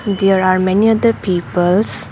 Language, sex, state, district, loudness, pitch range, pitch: English, female, Assam, Kamrup Metropolitan, -14 LUFS, 185-210 Hz, 190 Hz